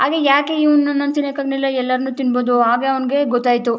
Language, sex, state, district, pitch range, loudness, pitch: Kannada, female, Karnataka, Chamarajanagar, 250-285 Hz, -17 LUFS, 270 Hz